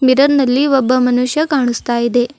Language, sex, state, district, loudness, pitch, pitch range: Kannada, female, Karnataka, Bidar, -14 LUFS, 255 Hz, 245-280 Hz